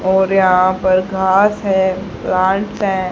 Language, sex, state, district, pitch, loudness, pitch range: Hindi, female, Haryana, Charkhi Dadri, 190 Hz, -15 LUFS, 185-195 Hz